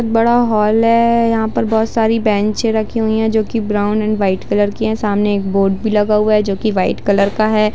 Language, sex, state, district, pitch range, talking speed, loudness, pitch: Hindi, female, Jharkhand, Jamtara, 205-225 Hz, 230 wpm, -15 LUFS, 215 Hz